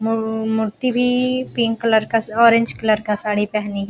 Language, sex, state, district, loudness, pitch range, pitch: Hindi, female, Bihar, Araria, -18 LUFS, 215-235 Hz, 220 Hz